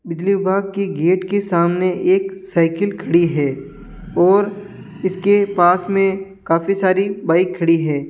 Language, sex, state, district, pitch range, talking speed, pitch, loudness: Hindi, male, Rajasthan, Jaipur, 170-195 Hz, 140 wpm, 185 Hz, -17 LUFS